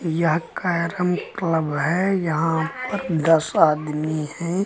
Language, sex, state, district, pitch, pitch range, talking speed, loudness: Hindi, male, Uttar Pradesh, Lucknow, 165 Hz, 160-180 Hz, 115 wpm, -22 LUFS